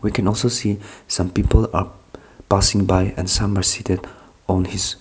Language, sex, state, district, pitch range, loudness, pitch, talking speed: English, male, Nagaland, Kohima, 95-105 Hz, -20 LUFS, 100 Hz, 165 wpm